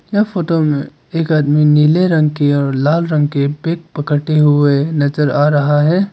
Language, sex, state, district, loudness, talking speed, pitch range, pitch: Hindi, male, Arunachal Pradesh, Papum Pare, -14 LUFS, 185 wpm, 145-165 Hz, 150 Hz